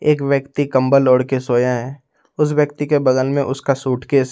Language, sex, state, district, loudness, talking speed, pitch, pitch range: Hindi, male, Jharkhand, Ranchi, -17 LUFS, 210 wpm, 135 Hz, 130-145 Hz